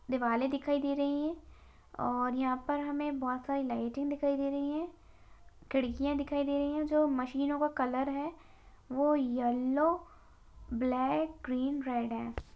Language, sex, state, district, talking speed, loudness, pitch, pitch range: Hindi, female, Bihar, Begusarai, 155 wpm, -33 LUFS, 280 Hz, 255-290 Hz